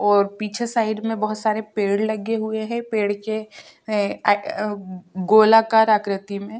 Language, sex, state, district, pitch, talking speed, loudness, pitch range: Hindi, female, Uttarakhand, Tehri Garhwal, 215 Hz, 145 wpm, -21 LUFS, 205-220 Hz